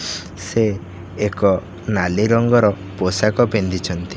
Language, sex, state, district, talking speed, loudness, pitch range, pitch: Odia, male, Odisha, Khordha, 85 wpm, -19 LUFS, 90-105 Hz, 95 Hz